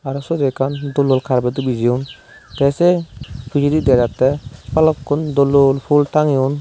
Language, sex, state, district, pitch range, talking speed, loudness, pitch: Chakma, male, Tripura, Dhalai, 130-145 Hz, 155 wpm, -16 LUFS, 140 Hz